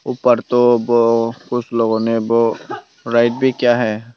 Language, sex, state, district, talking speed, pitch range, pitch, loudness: Hindi, male, Tripura, Dhalai, 145 wpm, 115-120 Hz, 115 Hz, -16 LUFS